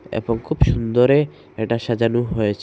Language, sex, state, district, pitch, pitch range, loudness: Bengali, male, Assam, Hailakandi, 115 Hz, 110-125 Hz, -20 LUFS